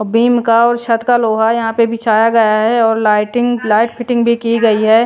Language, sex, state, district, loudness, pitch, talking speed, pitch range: Hindi, female, Bihar, Patna, -13 LUFS, 230 Hz, 225 wpm, 220-235 Hz